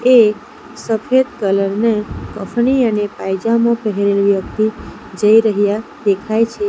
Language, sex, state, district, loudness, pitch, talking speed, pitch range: Gujarati, female, Gujarat, Valsad, -16 LUFS, 215 Hz, 115 wpm, 200-230 Hz